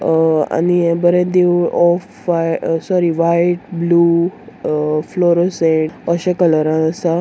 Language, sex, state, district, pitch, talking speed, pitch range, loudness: Konkani, female, Goa, North and South Goa, 170 Hz, 125 wpm, 165-175 Hz, -15 LUFS